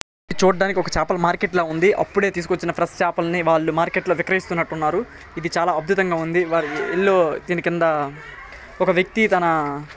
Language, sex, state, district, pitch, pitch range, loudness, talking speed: Telugu, male, Karnataka, Raichur, 175 Hz, 165-185 Hz, -20 LUFS, 155 wpm